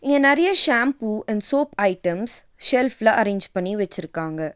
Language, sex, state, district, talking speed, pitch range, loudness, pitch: Tamil, female, Tamil Nadu, Nilgiris, 130 wpm, 185-275 Hz, -19 LUFS, 220 Hz